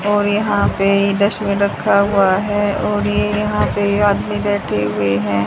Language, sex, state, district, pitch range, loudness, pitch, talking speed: Hindi, female, Haryana, Rohtak, 125-205 Hz, -16 LUFS, 200 Hz, 165 wpm